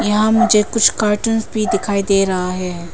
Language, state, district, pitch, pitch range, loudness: Hindi, Arunachal Pradesh, Papum Pare, 210 Hz, 190-220 Hz, -16 LUFS